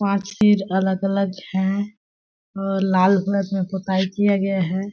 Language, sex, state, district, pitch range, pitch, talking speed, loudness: Hindi, female, Chhattisgarh, Balrampur, 190-200 Hz, 195 Hz, 160 wpm, -21 LUFS